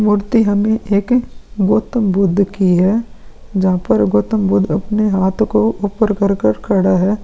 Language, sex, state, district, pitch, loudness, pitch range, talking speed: Hindi, male, Bihar, Vaishali, 200 Hz, -15 LUFS, 190-215 Hz, 155 wpm